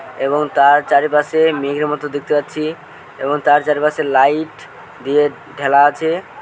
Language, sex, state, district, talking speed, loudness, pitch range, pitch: Bengali, male, West Bengal, Malda, 130 wpm, -15 LUFS, 140-150 Hz, 145 Hz